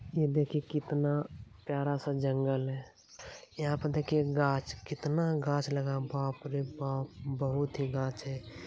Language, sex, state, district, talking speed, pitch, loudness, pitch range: Hindi, male, Bihar, Jamui, 150 wpm, 140 Hz, -33 LUFS, 135-150 Hz